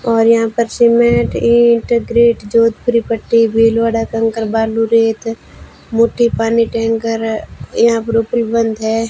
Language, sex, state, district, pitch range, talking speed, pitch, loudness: Hindi, female, Rajasthan, Bikaner, 225-235 Hz, 120 wpm, 230 Hz, -14 LUFS